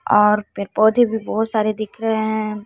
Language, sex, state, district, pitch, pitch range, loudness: Hindi, female, Bihar, West Champaran, 215 Hz, 210-220 Hz, -19 LUFS